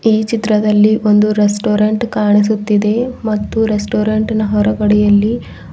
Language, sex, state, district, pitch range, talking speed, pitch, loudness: Kannada, female, Karnataka, Bidar, 210-220 Hz, 95 wpm, 215 Hz, -13 LUFS